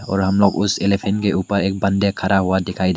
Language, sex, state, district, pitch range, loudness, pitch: Hindi, male, Meghalaya, West Garo Hills, 95-100 Hz, -18 LUFS, 100 Hz